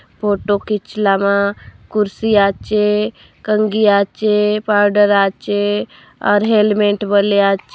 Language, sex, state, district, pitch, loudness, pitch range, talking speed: Halbi, female, Chhattisgarh, Bastar, 205 Hz, -15 LUFS, 200-210 Hz, 110 wpm